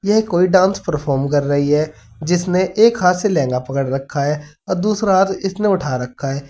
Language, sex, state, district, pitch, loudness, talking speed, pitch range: Hindi, male, Uttar Pradesh, Saharanpur, 170 Hz, -17 LUFS, 205 wpm, 140-190 Hz